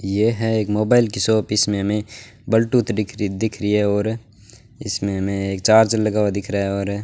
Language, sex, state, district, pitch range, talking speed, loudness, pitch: Hindi, male, Rajasthan, Bikaner, 100-110 Hz, 215 wpm, -19 LUFS, 105 Hz